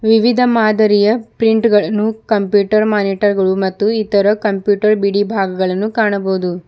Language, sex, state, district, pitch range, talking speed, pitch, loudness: Kannada, female, Karnataka, Bidar, 200-220 Hz, 110 wpm, 210 Hz, -14 LUFS